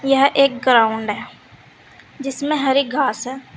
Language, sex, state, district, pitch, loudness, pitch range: Hindi, female, Uttar Pradesh, Saharanpur, 270 Hz, -18 LUFS, 250-275 Hz